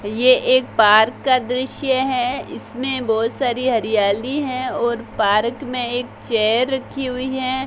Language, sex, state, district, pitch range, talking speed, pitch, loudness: Hindi, female, Rajasthan, Bikaner, 230-265 Hz, 150 wpm, 250 Hz, -19 LUFS